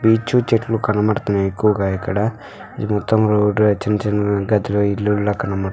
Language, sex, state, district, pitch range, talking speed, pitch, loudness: Telugu, female, Andhra Pradesh, Visakhapatnam, 100-110 Hz, 135 wpm, 105 Hz, -18 LUFS